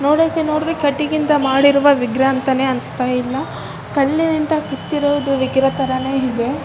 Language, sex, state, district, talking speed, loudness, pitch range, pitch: Kannada, male, Karnataka, Raichur, 110 wpm, -17 LUFS, 265-300 Hz, 275 Hz